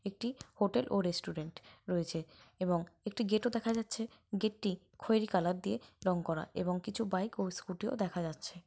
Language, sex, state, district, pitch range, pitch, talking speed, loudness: Bengali, female, West Bengal, Paschim Medinipur, 175-220 Hz, 195 Hz, 180 wpm, -36 LUFS